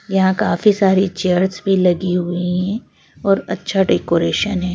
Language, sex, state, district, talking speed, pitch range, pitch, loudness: Hindi, female, Madhya Pradesh, Bhopal, 150 wpm, 180-195 Hz, 190 Hz, -17 LUFS